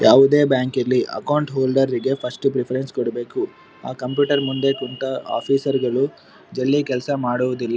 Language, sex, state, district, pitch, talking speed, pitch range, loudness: Kannada, male, Karnataka, Bellary, 130 Hz, 145 wpm, 125-135 Hz, -20 LUFS